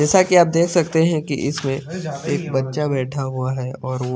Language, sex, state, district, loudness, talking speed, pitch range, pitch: Hindi, male, Chandigarh, Chandigarh, -20 LUFS, 200 wpm, 130-165 Hz, 145 Hz